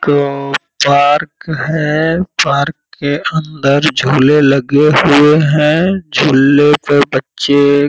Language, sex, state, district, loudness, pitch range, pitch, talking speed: Hindi, male, Bihar, Purnia, -11 LUFS, 140-155 Hz, 145 Hz, 105 wpm